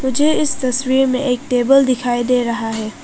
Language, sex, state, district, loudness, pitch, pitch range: Hindi, female, Arunachal Pradesh, Papum Pare, -16 LUFS, 255 Hz, 245-265 Hz